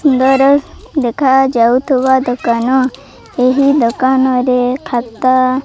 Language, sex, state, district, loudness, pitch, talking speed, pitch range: Odia, female, Odisha, Malkangiri, -12 LUFS, 260 Hz, 65 wpm, 250-270 Hz